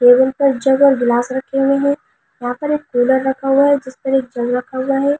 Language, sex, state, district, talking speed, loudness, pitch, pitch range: Hindi, female, Delhi, New Delhi, 220 wpm, -16 LUFS, 265 Hz, 250-275 Hz